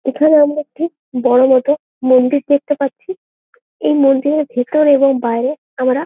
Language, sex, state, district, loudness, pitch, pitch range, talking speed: Bengali, female, West Bengal, Jalpaiguri, -14 LUFS, 280 Hz, 260-300 Hz, 160 wpm